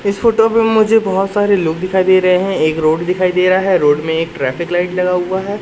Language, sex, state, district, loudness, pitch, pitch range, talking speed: Hindi, male, Madhya Pradesh, Katni, -14 LUFS, 185 Hz, 170-200 Hz, 265 wpm